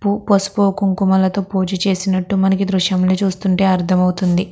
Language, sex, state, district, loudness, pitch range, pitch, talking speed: Telugu, female, Andhra Pradesh, Krishna, -16 LUFS, 185-195 Hz, 190 Hz, 135 wpm